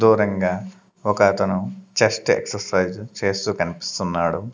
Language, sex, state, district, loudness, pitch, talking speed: Telugu, male, Andhra Pradesh, Sri Satya Sai, -21 LUFS, 105 Hz, 90 wpm